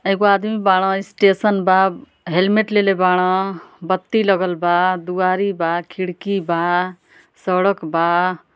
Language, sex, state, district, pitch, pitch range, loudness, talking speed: Bhojpuri, female, Uttar Pradesh, Ghazipur, 185 Hz, 180-195 Hz, -18 LUFS, 120 wpm